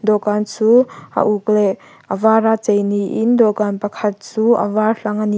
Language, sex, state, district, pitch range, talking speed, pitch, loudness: Mizo, female, Mizoram, Aizawl, 210-220 Hz, 180 wpm, 215 Hz, -16 LUFS